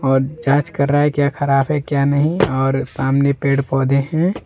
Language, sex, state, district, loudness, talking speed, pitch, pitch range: Hindi, male, Jharkhand, Deoghar, -17 LUFS, 200 wpm, 140 Hz, 135-145 Hz